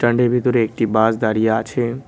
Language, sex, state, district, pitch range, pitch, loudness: Bengali, male, West Bengal, Cooch Behar, 110-120 Hz, 115 Hz, -18 LUFS